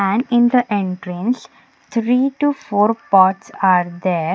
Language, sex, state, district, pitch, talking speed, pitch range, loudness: English, female, Punjab, Pathankot, 205 Hz, 140 wpm, 185-245 Hz, -17 LUFS